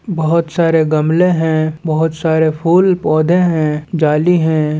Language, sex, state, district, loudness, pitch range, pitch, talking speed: Chhattisgarhi, male, Chhattisgarh, Balrampur, -14 LUFS, 155-170 Hz, 160 Hz, 135 wpm